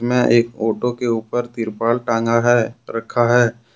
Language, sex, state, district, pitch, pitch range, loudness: Hindi, male, Jharkhand, Deoghar, 120 Hz, 115-120 Hz, -18 LUFS